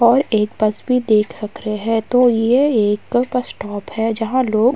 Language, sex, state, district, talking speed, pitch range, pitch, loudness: Hindi, female, Uttar Pradesh, Muzaffarnagar, 215 wpm, 215-250 Hz, 225 Hz, -17 LUFS